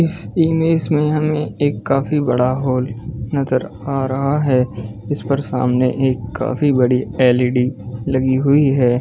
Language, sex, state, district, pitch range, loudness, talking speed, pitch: Hindi, male, Chhattisgarh, Balrampur, 125-145 Hz, -17 LUFS, 155 wpm, 130 Hz